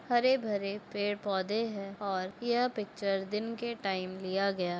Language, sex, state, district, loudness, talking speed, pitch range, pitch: Hindi, female, Jharkhand, Jamtara, -33 LUFS, 175 wpm, 195-225 Hz, 205 Hz